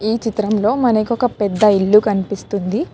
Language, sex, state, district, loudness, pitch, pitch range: Telugu, female, Telangana, Hyderabad, -16 LUFS, 210 Hz, 205-225 Hz